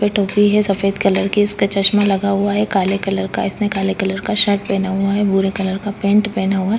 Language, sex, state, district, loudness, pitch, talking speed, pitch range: Hindi, female, Chhattisgarh, Korba, -16 LUFS, 200 Hz, 255 wpm, 195-205 Hz